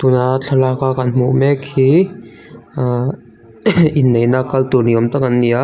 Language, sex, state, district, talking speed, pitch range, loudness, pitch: Mizo, male, Mizoram, Aizawl, 190 wpm, 120-135 Hz, -14 LUFS, 130 Hz